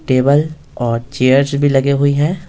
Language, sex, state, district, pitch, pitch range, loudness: Hindi, male, Bihar, Patna, 140 Hz, 130-145 Hz, -14 LUFS